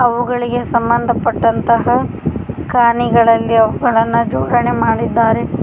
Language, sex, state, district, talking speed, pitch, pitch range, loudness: Kannada, female, Karnataka, Koppal, 65 wpm, 235 Hz, 230-240 Hz, -14 LUFS